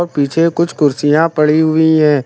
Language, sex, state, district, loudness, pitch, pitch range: Hindi, male, Uttar Pradesh, Lucknow, -12 LUFS, 155 Hz, 150-165 Hz